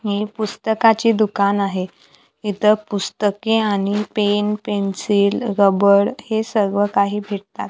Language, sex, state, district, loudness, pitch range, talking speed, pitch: Marathi, female, Maharashtra, Gondia, -18 LUFS, 200-215 Hz, 110 wpm, 205 Hz